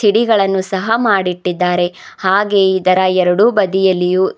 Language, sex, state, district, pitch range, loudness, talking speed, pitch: Kannada, female, Karnataka, Bidar, 185-200 Hz, -14 LUFS, 95 wpm, 190 Hz